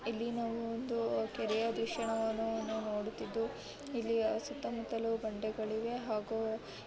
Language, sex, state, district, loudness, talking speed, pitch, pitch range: Kannada, female, Karnataka, Raichur, -37 LUFS, 95 wpm, 225 Hz, 220-230 Hz